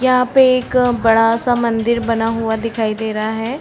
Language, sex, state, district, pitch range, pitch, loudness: Hindi, female, Chhattisgarh, Balrampur, 225-250 Hz, 230 Hz, -16 LUFS